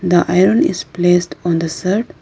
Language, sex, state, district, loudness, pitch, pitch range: English, female, Arunachal Pradesh, Lower Dibang Valley, -15 LUFS, 175 Hz, 170-185 Hz